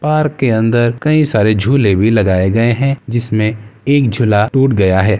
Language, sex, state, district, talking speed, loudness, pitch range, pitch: Hindi, male, Uttar Pradesh, Gorakhpur, 195 wpm, -13 LUFS, 105-135 Hz, 115 Hz